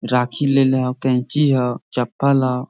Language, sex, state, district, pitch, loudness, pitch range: Hindi, male, Jharkhand, Sahebganj, 130 Hz, -18 LUFS, 125-135 Hz